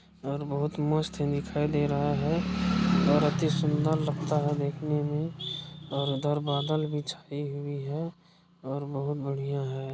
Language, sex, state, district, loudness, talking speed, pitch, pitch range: Hindi, male, Uttar Pradesh, Gorakhpur, -29 LUFS, 155 wpm, 150 Hz, 145-155 Hz